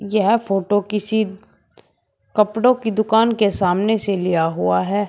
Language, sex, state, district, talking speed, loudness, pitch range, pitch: Hindi, male, Uttar Pradesh, Shamli, 140 wpm, -18 LUFS, 195-220 Hz, 205 Hz